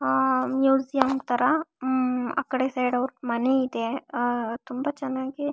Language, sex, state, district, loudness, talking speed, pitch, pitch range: Kannada, female, Karnataka, Shimoga, -25 LUFS, 130 wpm, 260 Hz, 245-270 Hz